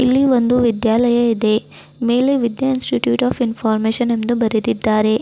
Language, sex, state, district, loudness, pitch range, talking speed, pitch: Kannada, female, Karnataka, Bidar, -17 LUFS, 220-245 Hz, 115 wpm, 235 Hz